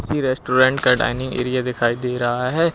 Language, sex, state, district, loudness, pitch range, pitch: Hindi, male, Uttar Pradesh, Lucknow, -19 LUFS, 125-130 Hz, 125 Hz